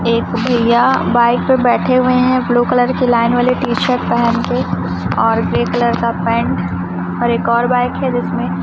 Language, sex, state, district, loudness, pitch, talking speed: Hindi, female, Chhattisgarh, Raipur, -14 LUFS, 235 Hz, 195 wpm